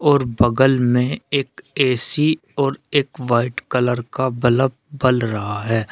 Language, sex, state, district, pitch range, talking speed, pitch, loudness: Hindi, male, Uttar Pradesh, Shamli, 120-140 Hz, 140 wpm, 130 Hz, -19 LUFS